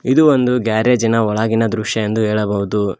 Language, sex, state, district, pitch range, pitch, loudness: Kannada, male, Karnataka, Koppal, 105-120 Hz, 110 Hz, -16 LUFS